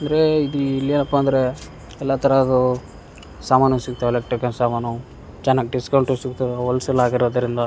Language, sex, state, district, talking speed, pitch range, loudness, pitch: Kannada, male, Karnataka, Raichur, 110 wpm, 120-135 Hz, -20 LUFS, 125 Hz